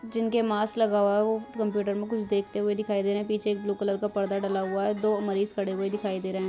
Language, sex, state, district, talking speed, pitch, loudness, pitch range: Hindi, female, Bihar, Vaishali, 295 wpm, 205 Hz, -27 LUFS, 200-215 Hz